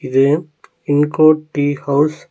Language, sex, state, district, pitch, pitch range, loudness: Tamil, male, Tamil Nadu, Nilgiris, 145 Hz, 145-155 Hz, -15 LUFS